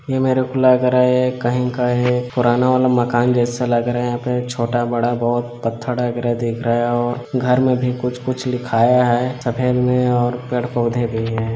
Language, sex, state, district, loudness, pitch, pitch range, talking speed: Hindi, male, Chhattisgarh, Bilaspur, -18 LUFS, 125 Hz, 120-125 Hz, 215 wpm